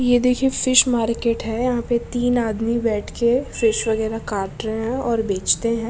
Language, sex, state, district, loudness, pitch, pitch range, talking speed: Hindi, female, Maharashtra, Aurangabad, -20 LUFS, 235 Hz, 225-245 Hz, 185 wpm